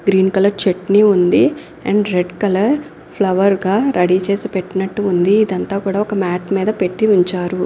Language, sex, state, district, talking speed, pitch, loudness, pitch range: Telugu, female, Andhra Pradesh, Anantapur, 155 wpm, 195 Hz, -16 LUFS, 185-205 Hz